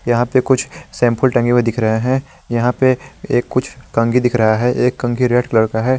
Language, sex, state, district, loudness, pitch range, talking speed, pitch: Hindi, male, Jharkhand, Garhwa, -16 LUFS, 120-130 Hz, 220 wpm, 125 Hz